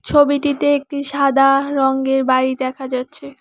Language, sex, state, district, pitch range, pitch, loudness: Bengali, female, West Bengal, Alipurduar, 265-285 Hz, 275 Hz, -17 LUFS